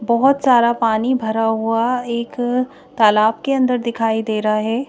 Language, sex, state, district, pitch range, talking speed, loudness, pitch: Hindi, female, Madhya Pradesh, Bhopal, 225-250 Hz, 160 wpm, -17 LUFS, 235 Hz